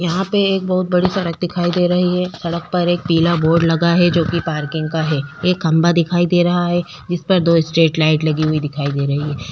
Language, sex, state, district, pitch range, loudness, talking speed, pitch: Hindi, female, Chhattisgarh, Korba, 160-175 Hz, -17 LUFS, 245 wpm, 170 Hz